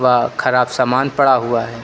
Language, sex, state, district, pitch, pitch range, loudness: Hindi, male, Uttar Pradesh, Lucknow, 125 Hz, 120-130 Hz, -15 LUFS